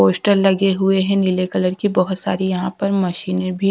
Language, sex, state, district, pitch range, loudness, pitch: Hindi, female, Punjab, Kapurthala, 185-195 Hz, -18 LUFS, 190 Hz